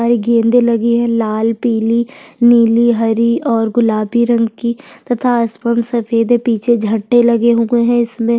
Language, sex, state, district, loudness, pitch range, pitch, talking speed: Hindi, female, Chhattisgarh, Sukma, -13 LUFS, 230-240 Hz, 235 Hz, 150 wpm